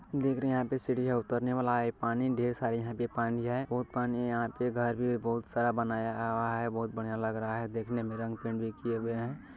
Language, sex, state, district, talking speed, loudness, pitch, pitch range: Maithili, male, Bihar, Kishanganj, 255 wpm, -33 LUFS, 120 Hz, 115-125 Hz